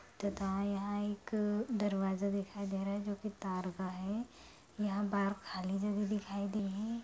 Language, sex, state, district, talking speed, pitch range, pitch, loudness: Hindi, female, Bihar, Lakhisarai, 170 wpm, 195-205 Hz, 200 Hz, -38 LUFS